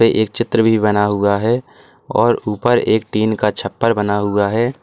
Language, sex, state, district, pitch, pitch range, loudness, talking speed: Hindi, male, Uttar Pradesh, Lalitpur, 110 Hz, 105-115 Hz, -16 LUFS, 185 wpm